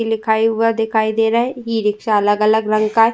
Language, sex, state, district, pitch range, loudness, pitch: Hindi, female, Uttar Pradesh, Jyotiba Phule Nagar, 215-225 Hz, -16 LUFS, 225 Hz